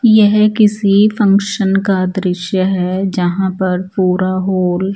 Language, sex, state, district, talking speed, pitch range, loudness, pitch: Hindi, female, Chandigarh, Chandigarh, 135 wpm, 185-200 Hz, -14 LUFS, 190 Hz